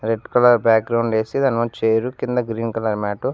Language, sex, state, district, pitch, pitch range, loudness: Telugu, male, Andhra Pradesh, Annamaya, 115 Hz, 110-120 Hz, -19 LUFS